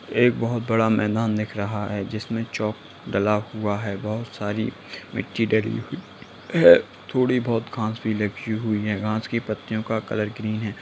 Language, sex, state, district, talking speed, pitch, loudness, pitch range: Hindi, male, Bihar, Lakhisarai, 180 wpm, 110 Hz, -24 LUFS, 105-115 Hz